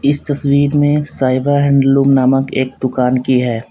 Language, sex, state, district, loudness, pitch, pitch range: Hindi, male, Uttar Pradesh, Lalitpur, -14 LUFS, 135 Hz, 130-145 Hz